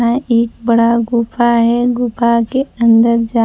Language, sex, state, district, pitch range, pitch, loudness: Hindi, female, Bihar, Kaimur, 230-240 Hz, 235 Hz, -13 LUFS